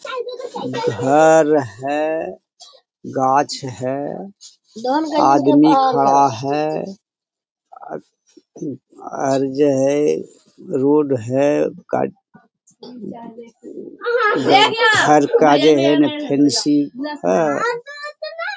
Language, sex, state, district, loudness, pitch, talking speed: Hindi, male, Bihar, Jamui, -16 LUFS, 190 Hz, 60 wpm